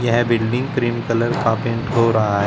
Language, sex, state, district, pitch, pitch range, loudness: Hindi, male, Uttar Pradesh, Shamli, 115 Hz, 115-120 Hz, -19 LUFS